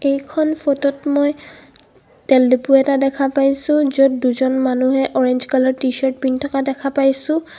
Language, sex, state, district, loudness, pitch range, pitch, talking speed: Assamese, female, Assam, Kamrup Metropolitan, -17 LUFS, 260-280 Hz, 275 Hz, 150 wpm